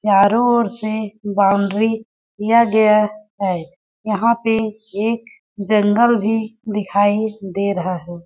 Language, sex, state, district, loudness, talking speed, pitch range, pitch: Hindi, female, Chhattisgarh, Balrampur, -18 LUFS, 115 wpm, 200-225 Hz, 215 Hz